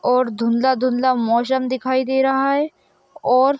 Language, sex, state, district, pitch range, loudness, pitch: Hindi, female, Jharkhand, Sahebganj, 250-265 Hz, -19 LUFS, 260 Hz